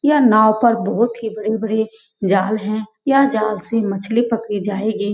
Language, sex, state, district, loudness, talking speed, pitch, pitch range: Hindi, female, Bihar, Saran, -18 LUFS, 165 wpm, 220 Hz, 210-230 Hz